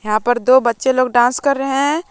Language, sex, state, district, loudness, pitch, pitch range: Hindi, female, Jharkhand, Palamu, -15 LUFS, 255 Hz, 240-275 Hz